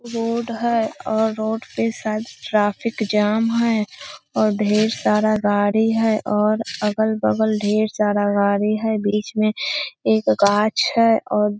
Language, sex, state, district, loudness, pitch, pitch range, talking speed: Magahi, female, Bihar, Lakhisarai, -20 LUFS, 215 Hz, 210-225 Hz, 145 wpm